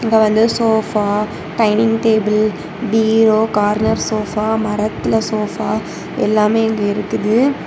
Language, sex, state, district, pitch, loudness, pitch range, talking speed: Tamil, female, Tamil Nadu, Kanyakumari, 220 Hz, -16 LUFS, 210-225 Hz, 100 wpm